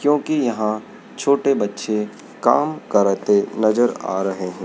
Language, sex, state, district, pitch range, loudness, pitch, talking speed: Hindi, male, Madhya Pradesh, Dhar, 100-145 Hz, -20 LUFS, 110 Hz, 130 wpm